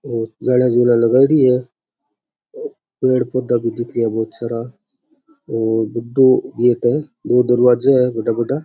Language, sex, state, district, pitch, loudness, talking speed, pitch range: Rajasthani, male, Rajasthan, Churu, 125 Hz, -16 LUFS, 145 wpm, 115-135 Hz